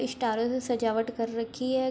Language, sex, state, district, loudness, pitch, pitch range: Hindi, female, Bihar, Begusarai, -29 LUFS, 240 Hz, 230-255 Hz